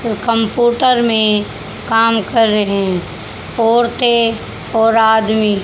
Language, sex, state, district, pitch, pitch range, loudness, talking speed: Hindi, female, Haryana, Jhajjar, 225 Hz, 210-235 Hz, -14 LUFS, 85 wpm